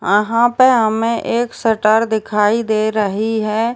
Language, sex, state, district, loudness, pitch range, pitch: Hindi, female, Uttar Pradesh, Deoria, -15 LUFS, 215-230 Hz, 220 Hz